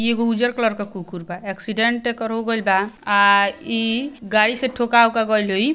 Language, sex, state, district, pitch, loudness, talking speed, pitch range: Bhojpuri, female, Bihar, Gopalganj, 225 Hz, -19 LUFS, 220 wpm, 200-235 Hz